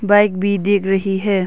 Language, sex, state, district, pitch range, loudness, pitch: Hindi, female, Arunachal Pradesh, Longding, 195-205 Hz, -16 LUFS, 200 Hz